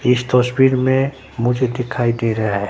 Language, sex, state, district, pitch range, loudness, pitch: Hindi, male, Bihar, Katihar, 115-130 Hz, -17 LUFS, 125 Hz